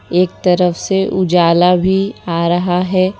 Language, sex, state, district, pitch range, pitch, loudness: Hindi, female, Gujarat, Valsad, 175-185 Hz, 180 Hz, -14 LUFS